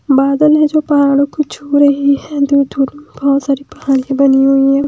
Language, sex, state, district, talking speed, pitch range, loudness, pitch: Hindi, female, Himachal Pradesh, Shimla, 185 wpm, 275-290 Hz, -12 LUFS, 280 Hz